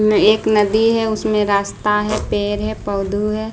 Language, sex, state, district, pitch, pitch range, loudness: Hindi, female, Bihar, Patna, 210 Hz, 205-215 Hz, -17 LUFS